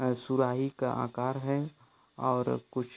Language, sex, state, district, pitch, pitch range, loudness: Hindi, male, Bihar, Gopalganj, 130 Hz, 125-135 Hz, -32 LUFS